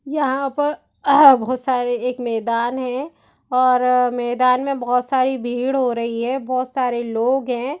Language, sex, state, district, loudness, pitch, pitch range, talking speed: Hindi, female, Bihar, Gaya, -19 LUFS, 255 Hz, 245-270 Hz, 160 wpm